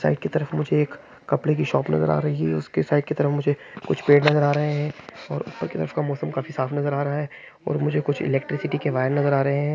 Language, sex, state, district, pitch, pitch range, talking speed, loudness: Hindi, male, Andhra Pradesh, Srikakulam, 145 Hz, 130-150 Hz, 270 wpm, -23 LUFS